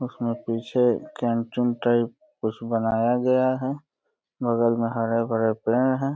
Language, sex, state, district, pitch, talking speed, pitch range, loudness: Hindi, male, Uttar Pradesh, Deoria, 120 Hz, 135 wpm, 115-125 Hz, -24 LUFS